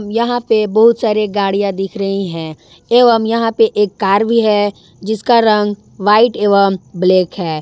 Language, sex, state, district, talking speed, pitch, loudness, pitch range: Hindi, female, Jharkhand, Ranchi, 165 wpm, 210 Hz, -13 LUFS, 195-225 Hz